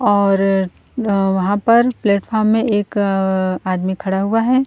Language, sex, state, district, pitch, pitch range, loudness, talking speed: Hindi, female, Chhattisgarh, Korba, 200 Hz, 190-220 Hz, -17 LUFS, 130 wpm